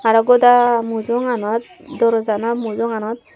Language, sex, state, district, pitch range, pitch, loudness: Chakma, female, Tripura, Dhalai, 225-245 Hz, 230 Hz, -17 LUFS